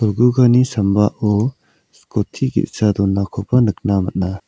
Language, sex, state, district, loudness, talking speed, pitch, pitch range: Garo, male, Meghalaya, South Garo Hills, -17 LUFS, 80 wpm, 105 Hz, 100-120 Hz